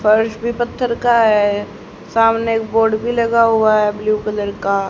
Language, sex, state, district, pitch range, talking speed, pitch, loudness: Hindi, female, Haryana, Charkhi Dadri, 210-230 Hz, 170 wpm, 225 Hz, -16 LUFS